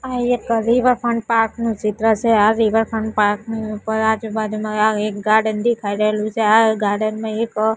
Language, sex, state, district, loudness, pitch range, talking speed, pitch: Gujarati, female, Gujarat, Gandhinagar, -18 LUFS, 215-225 Hz, 175 wpm, 220 Hz